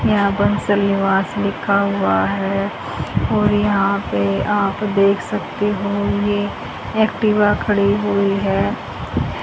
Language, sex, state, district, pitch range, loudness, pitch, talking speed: Hindi, female, Haryana, Charkhi Dadri, 195-205 Hz, -18 LUFS, 200 Hz, 115 wpm